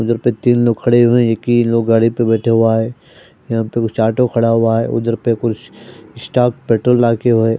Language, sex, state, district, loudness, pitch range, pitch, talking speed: Hindi, male, Maharashtra, Mumbai Suburban, -14 LUFS, 115-120 Hz, 115 Hz, 230 wpm